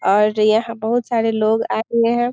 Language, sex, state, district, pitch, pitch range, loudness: Hindi, female, Bihar, Muzaffarpur, 225 Hz, 215-235 Hz, -18 LUFS